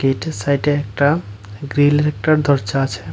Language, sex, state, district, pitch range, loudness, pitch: Bengali, male, Tripura, West Tripura, 130-145 Hz, -17 LUFS, 140 Hz